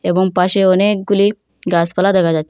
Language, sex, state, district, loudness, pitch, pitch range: Bengali, female, Assam, Hailakandi, -14 LUFS, 190 Hz, 175-200 Hz